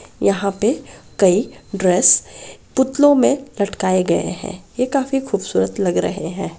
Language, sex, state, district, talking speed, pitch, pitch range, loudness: Hindi, female, Bihar, Kishanganj, 135 wpm, 210 Hz, 195-265 Hz, -18 LUFS